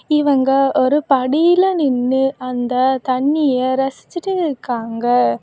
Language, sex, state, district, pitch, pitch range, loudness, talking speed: Tamil, female, Tamil Nadu, Kanyakumari, 265 Hz, 255-295 Hz, -17 LUFS, 90 wpm